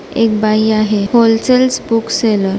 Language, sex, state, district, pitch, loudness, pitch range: Marathi, female, Maharashtra, Chandrapur, 225 Hz, -13 LUFS, 215-230 Hz